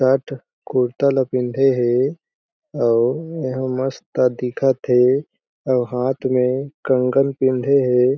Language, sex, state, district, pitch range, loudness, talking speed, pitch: Chhattisgarhi, male, Chhattisgarh, Jashpur, 125-135 Hz, -19 LUFS, 115 wpm, 130 Hz